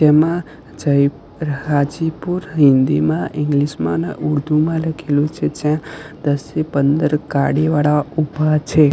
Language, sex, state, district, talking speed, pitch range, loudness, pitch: Gujarati, male, Gujarat, Gandhinagar, 115 wpm, 145-155 Hz, -17 LUFS, 150 Hz